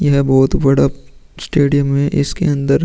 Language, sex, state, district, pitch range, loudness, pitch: Hindi, male, Uttar Pradesh, Muzaffarnagar, 135-145 Hz, -14 LUFS, 140 Hz